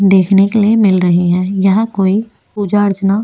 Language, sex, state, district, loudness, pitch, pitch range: Hindi, female, Uttarakhand, Tehri Garhwal, -12 LUFS, 195 Hz, 190-210 Hz